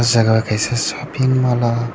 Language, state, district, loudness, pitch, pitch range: Kokborok, Tripura, Dhalai, -17 LUFS, 120 Hz, 115-130 Hz